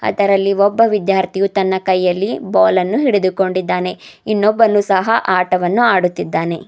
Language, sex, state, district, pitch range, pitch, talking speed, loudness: Kannada, female, Karnataka, Bidar, 185-205 Hz, 195 Hz, 100 wpm, -15 LUFS